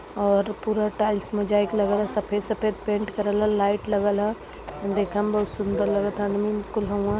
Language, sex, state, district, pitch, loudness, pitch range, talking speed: Hindi, female, Uttar Pradesh, Varanasi, 205 Hz, -24 LUFS, 205-210 Hz, 235 wpm